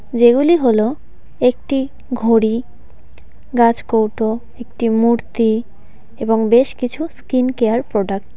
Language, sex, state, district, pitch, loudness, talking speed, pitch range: Bengali, female, West Bengal, Cooch Behar, 235 Hz, -16 LUFS, 100 wpm, 225-250 Hz